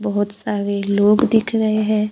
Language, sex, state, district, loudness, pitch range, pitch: Hindi, female, Maharashtra, Gondia, -18 LUFS, 205-215 Hz, 210 Hz